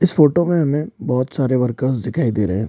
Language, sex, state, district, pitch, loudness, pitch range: Hindi, male, Bihar, Purnia, 130 Hz, -18 LUFS, 125-160 Hz